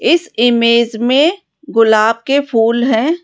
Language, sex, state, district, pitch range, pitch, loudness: Hindi, female, Rajasthan, Jaipur, 230-295 Hz, 240 Hz, -13 LUFS